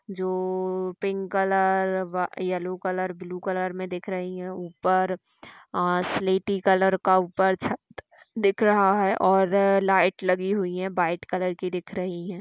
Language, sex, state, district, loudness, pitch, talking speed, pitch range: Hindi, female, Chhattisgarh, Raigarh, -25 LUFS, 185 Hz, 150 wpm, 185-195 Hz